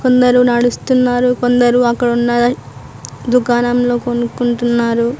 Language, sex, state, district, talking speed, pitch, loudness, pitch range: Telugu, female, Telangana, Mahabubabad, 80 wpm, 245 Hz, -14 LUFS, 240-245 Hz